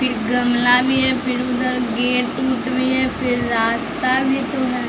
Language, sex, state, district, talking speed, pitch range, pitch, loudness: Hindi, female, Bihar, Patna, 185 wpm, 245-260 Hz, 255 Hz, -18 LUFS